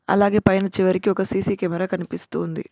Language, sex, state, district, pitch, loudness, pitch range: Telugu, female, Telangana, Mahabubabad, 195 Hz, -21 LUFS, 185-200 Hz